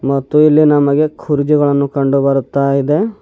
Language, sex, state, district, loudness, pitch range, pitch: Kannada, male, Karnataka, Bidar, -13 LUFS, 140-150 Hz, 145 Hz